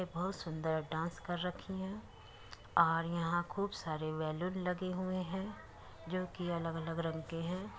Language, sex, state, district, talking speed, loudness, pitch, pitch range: Hindi, female, Uttar Pradesh, Muzaffarnagar, 170 wpm, -38 LUFS, 170 Hz, 160-185 Hz